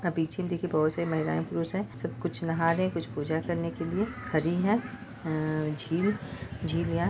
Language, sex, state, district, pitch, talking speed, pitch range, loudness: Hindi, female, Bihar, Purnia, 165 Hz, 210 wpm, 155-175 Hz, -30 LUFS